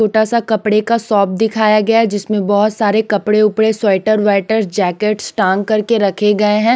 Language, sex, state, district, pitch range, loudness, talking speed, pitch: Hindi, female, Punjab, Pathankot, 205-220 Hz, -14 LUFS, 175 wpm, 215 Hz